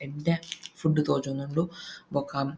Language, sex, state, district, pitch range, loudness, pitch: Tulu, male, Karnataka, Dakshina Kannada, 140-165 Hz, -29 LUFS, 150 Hz